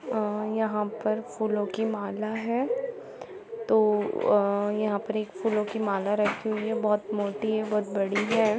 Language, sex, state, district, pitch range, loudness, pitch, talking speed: Hindi, female, Jharkhand, Jamtara, 210-225 Hz, -27 LUFS, 215 Hz, 170 wpm